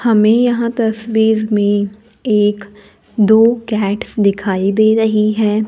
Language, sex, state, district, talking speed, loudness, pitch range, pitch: Hindi, female, Maharashtra, Gondia, 115 wpm, -14 LUFS, 205-225 Hz, 215 Hz